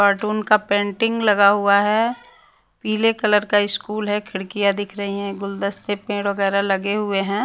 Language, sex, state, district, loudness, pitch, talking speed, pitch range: Hindi, female, Punjab, Pathankot, -20 LUFS, 205 Hz, 170 wpm, 200-210 Hz